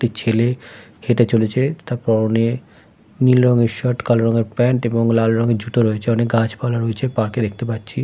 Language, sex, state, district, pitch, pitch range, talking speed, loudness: Bengali, male, West Bengal, Kolkata, 115 Hz, 115-120 Hz, 185 wpm, -18 LUFS